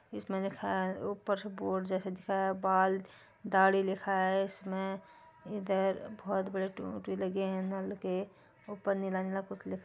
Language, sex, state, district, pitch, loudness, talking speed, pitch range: Hindi, female, Uttar Pradesh, Etah, 195 Hz, -34 LUFS, 185 wpm, 190-200 Hz